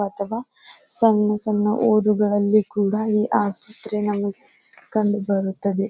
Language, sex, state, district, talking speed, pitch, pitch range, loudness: Kannada, female, Karnataka, Bijapur, 100 wpm, 210 Hz, 205-215 Hz, -21 LUFS